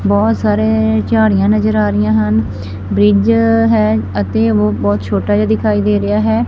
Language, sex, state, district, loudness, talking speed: Punjabi, female, Punjab, Fazilka, -13 LUFS, 165 wpm